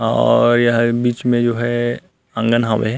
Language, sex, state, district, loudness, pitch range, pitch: Chhattisgarhi, male, Chhattisgarh, Rajnandgaon, -16 LUFS, 115-120 Hz, 120 Hz